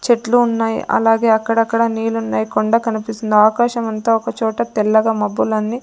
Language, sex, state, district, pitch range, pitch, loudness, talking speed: Telugu, female, Andhra Pradesh, Sri Satya Sai, 220-230 Hz, 225 Hz, -16 LUFS, 125 wpm